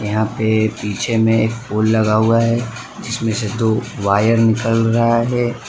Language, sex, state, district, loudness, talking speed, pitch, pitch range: Hindi, male, Gujarat, Valsad, -17 LUFS, 170 wpm, 110 Hz, 110-115 Hz